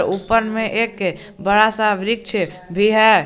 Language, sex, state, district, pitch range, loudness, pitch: Hindi, male, Jharkhand, Garhwa, 195-220 Hz, -17 LUFS, 215 Hz